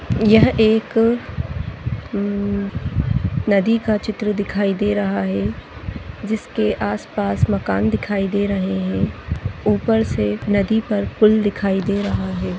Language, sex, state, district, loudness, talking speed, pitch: Hindi, female, Maharashtra, Chandrapur, -19 LUFS, 125 wpm, 200 Hz